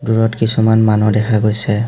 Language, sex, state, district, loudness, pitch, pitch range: Assamese, male, Assam, Hailakandi, -14 LUFS, 110 Hz, 105-115 Hz